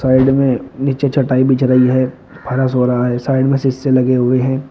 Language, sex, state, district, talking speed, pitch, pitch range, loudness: Hindi, male, Uttar Pradesh, Shamli, 205 wpm, 130 Hz, 130-135 Hz, -14 LUFS